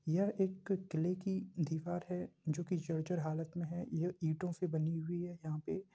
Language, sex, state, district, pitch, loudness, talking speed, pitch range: Hindi, male, Bihar, Samastipur, 175 Hz, -39 LUFS, 210 wpm, 160-180 Hz